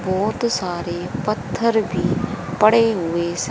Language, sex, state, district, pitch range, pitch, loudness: Hindi, female, Haryana, Rohtak, 175-215 Hz, 185 Hz, -20 LUFS